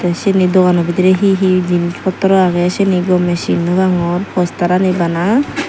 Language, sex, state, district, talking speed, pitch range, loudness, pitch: Chakma, female, Tripura, Dhalai, 160 wpm, 175-190 Hz, -13 LUFS, 180 Hz